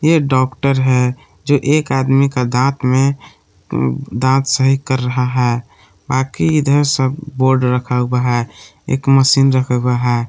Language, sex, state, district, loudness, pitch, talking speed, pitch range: Hindi, male, Jharkhand, Palamu, -15 LUFS, 130 Hz, 150 wpm, 125-135 Hz